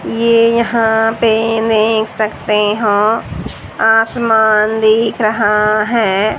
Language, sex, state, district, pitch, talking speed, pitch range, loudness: Hindi, female, Haryana, Jhajjar, 220 Hz, 95 wpm, 215-225 Hz, -13 LUFS